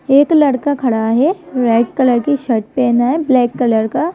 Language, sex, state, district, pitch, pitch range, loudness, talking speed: Hindi, female, Madhya Pradesh, Bhopal, 255 Hz, 235-285 Hz, -14 LUFS, 200 wpm